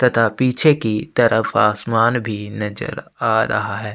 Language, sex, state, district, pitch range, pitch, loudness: Hindi, male, Chhattisgarh, Sukma, 105-120 Hz, 110 Hz, -18 LUFS